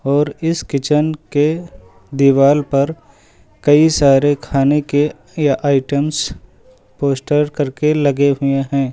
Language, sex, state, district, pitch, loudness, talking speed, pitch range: Hindi, male, Uttar Pradesh, Lucknow, 140 Hz, -16 LUFS, 115 wpm, 135-150 Hz